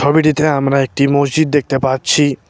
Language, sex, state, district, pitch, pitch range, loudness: Bengali, male, West Bengal, Cooch Behar, 140 Hz, 135-150 Hz, -14 LUFS